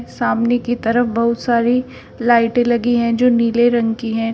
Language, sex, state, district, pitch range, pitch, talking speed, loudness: Hindi, female, Uttar Pradesh, Shamli, 230-240 Hz, 235 Hz, 180 wpm, -16 LUFS